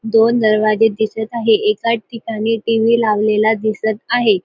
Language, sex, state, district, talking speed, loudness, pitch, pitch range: Marathi, female, Maharashtra, Dhule, 135 wpm, -16 LUFS, 220 Hz, 215-230 Hz